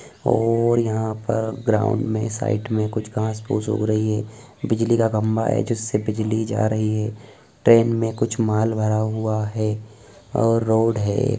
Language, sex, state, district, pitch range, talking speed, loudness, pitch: Bhojpuri, male, Bihar, Saran, 110-115 Hz, 165 wpm, -21 LUFS, 110 Hz